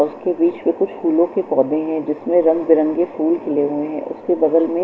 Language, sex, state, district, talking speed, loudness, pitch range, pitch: Hindi, female, Chandigarh, Chandigarh, 235 wpm, -18 LUFS, 155-175 Hz, 165 Hz